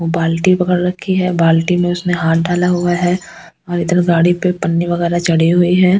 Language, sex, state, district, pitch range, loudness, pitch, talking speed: Hindi, female, Delhi, New Delhi, 170-180 Hz, -14 LUFS, 175 Hz, 200 wpm